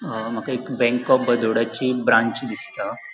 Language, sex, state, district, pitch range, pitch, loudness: Konkani, male, Goa, North and South Goa, 115-125 Hz, 120 Hz, -21 LUFS